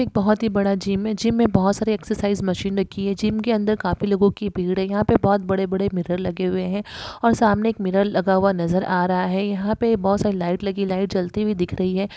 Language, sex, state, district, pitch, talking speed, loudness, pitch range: Hindi, female, Andhra Pradesh, Guntur, 200 Hz, 265 wpm, -21 LUFS, 190-210 Hz